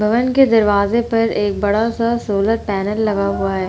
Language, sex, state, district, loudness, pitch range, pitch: Hindi, female, Uttar Pradesh, Hamirpur, -16 LUFS, 200-230 Hz, 210 Hz